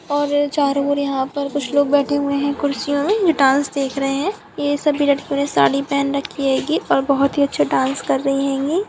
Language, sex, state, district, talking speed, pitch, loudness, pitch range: Hindi, female, Bihar, Jamui, 215 wpm, 280 Hz, -18 LUFS, 275-290 Hz